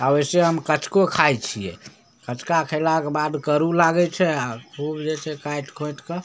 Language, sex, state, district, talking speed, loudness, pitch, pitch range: Maithili, male, Bihar, Samastipur, 190 wpm, -22 LUFS, 155 Hz, 145-165 Hz